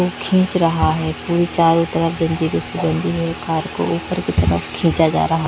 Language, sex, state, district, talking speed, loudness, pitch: Hindi, female, Haryana, Rohtak, 195 wpm, -18 LUFS, 165 Hz